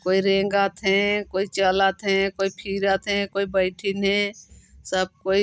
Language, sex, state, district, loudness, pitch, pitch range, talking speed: Chhattisgarhi, female, Chhattisgarh, Sarguja, -23 LUFS, 195 Hz, 195-200 Hz, 155 wpm